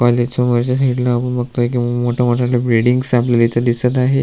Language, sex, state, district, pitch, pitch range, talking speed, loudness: Marathi, male, Maharashtra, Aurangabad, 120 Hz, 120-125 Hz, 170 wpm, -16 LUFS